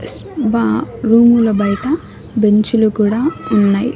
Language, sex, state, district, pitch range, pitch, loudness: Telugu, male, Andhra Pradesh, Annamaya, 210-235 Hz, 220 Hz, -14 LUFS